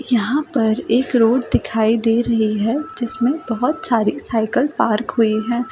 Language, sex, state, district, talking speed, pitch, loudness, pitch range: Hindi, female, Delhi, New Delhi, 155 wpm, 235 Hz, -18 LUFS, 225-260 Hz